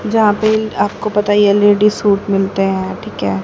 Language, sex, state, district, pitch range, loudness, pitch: Hindi, female, Haryana, Rohtak, 195-210 Hz, -14 LUFS, 205 Hz